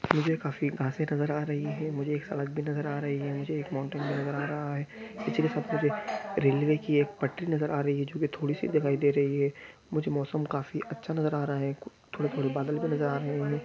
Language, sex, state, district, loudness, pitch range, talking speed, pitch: Hindi, male, Chhattisgarh, Raigarh, -30 LUFS, 140-150 Hz, 250 wpm, 145 Hz